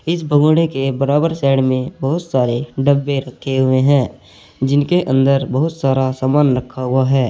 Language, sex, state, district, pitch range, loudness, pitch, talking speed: Hindi, male, Uttar Pradesh, Saharanpur, 130-145 Hz, -16 LUFS, 135 Hz, 165 wpm